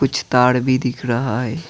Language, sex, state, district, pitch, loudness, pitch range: Hindi, male, Assam, Kamrup Metropolitan, 125 Hz, -18 LUFS, 125-130 Hz